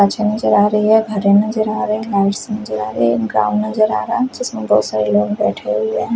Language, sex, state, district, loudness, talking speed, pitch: Hindi, female, Chhattisgarh, Raipur, -16 LUFS, 235 wpm, 200 Hz